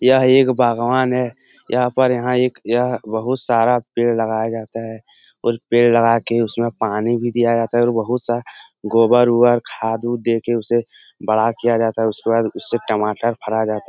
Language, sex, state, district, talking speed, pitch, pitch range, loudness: Hindi, male, Bihar, Araria, 195 wpm, 120 Hz, 115-120 Hz, -18 LUFS